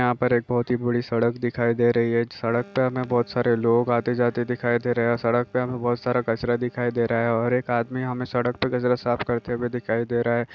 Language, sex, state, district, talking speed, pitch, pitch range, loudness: Hindi, male, Chhattisgarh, Balrampur, 270 wpm, 120 Hz, 120-125 Hz, -23 LUFS